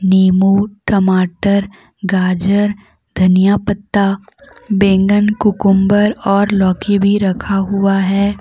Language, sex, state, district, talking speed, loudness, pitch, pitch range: Hindi, female, Jharkhand, Deoghar, 95 wpm, -14 LUFS, 200 Hz, 190-205 Hz